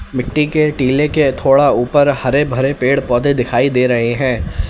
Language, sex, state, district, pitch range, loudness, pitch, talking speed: Hindi, male, Uttar Pradesh, Lalitpur, 125-145 Hz, -14 LUFS, 135 Hz, 180 wpm